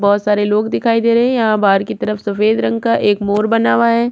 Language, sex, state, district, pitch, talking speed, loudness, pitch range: Hindi, female, Chhattisgarh, Kabirdham, 205 Hz, 290 wpm, -14 LUFS, 195-215 Hz